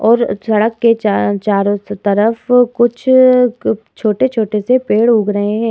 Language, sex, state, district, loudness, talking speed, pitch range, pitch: Hindi, female, Uttar Pradesh, Muzaffarnagar, -13 LUFS, 180 wpm, 210-240 Hz, 220 Hz